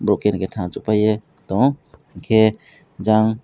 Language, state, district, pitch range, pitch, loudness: Kokborok, Tripura, West Tripura, 95-110 Hz, 110 Hz, -19 LUFS